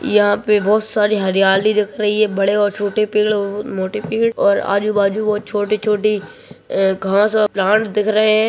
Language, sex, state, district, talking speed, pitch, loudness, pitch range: Hindi, male, Uttarakhand, Uttarkashi, 190 wpm, 210 Hz, -16 LUFS, 200-215 Hz